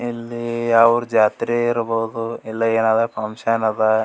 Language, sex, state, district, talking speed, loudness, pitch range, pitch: Kannada, male, Karnataka, Gulbarga, 120 wpm, -19 LUFS, 110-115 Hz, 115 Hz